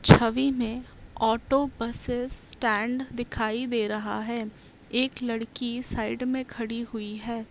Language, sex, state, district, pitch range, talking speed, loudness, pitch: Hindi, female, Bihar, Saharsa, 225-250 Hz, 120 wpm, -28 LUFS, 235 Hz